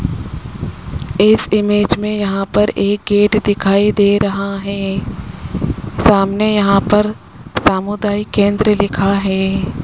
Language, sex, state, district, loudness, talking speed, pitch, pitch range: Hindi, male, Rajasthan, Jaipur, -14 LUFS, 110 wpm, 205 Hz, 195-210 Hz